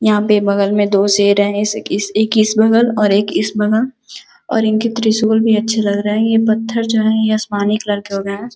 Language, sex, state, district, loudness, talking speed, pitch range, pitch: Hindi, female, Uttar Pradesh, Gorakhpur, -14 LUFS, 245 wpm, 205-225 Hz, 215 Hz